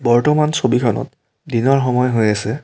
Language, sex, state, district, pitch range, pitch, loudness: Assamese, male, Assam, Kamrup Metropolitan, 115-135 Hz, 125 Hz, -16 LUFS